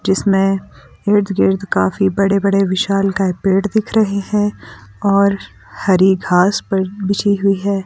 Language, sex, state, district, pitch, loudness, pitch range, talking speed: Hindi, female, Himachal Pradesh, Shimla, 195 Hz, -16 LUFS, 190-200 Hz, 135 wpm